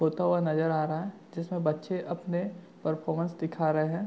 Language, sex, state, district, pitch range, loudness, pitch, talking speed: Hindi, male, Jharkhand, Sahebganj, 155-175 Hz, -31 LUFS, 165 Hz, 190 wpm